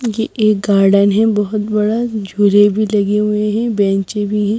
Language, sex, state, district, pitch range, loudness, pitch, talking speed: Hindi, female, Madhya Pradesh, Bhopal, 205-215 Hz, -14 LUFS, 210 Hz, 185 wpm